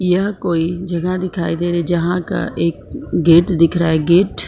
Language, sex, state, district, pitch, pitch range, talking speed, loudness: Hindi, female, Jharkhand, Sahebganj, 175 Hz, 170-180 Hz, 200 wpm, -16 LUFS